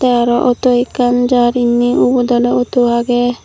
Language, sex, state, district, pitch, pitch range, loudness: Chakma, female, Tripura, Dhalai, 245 Hz, 240-245 Hz, -13 LUFS